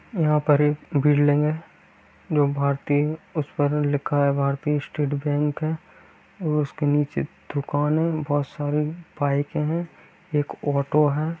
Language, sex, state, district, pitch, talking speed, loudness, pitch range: Hindi, male, Bihar, Kishanganj, 150 Hz, 140 wpm, -24 LUFS, 145-155 Hz